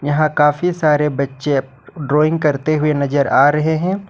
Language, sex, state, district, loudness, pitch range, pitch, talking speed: Hindi, male, Jharkhand, Ranchi, -16 LUFS, 145-155 Hz, 150 Hz, 160 wpm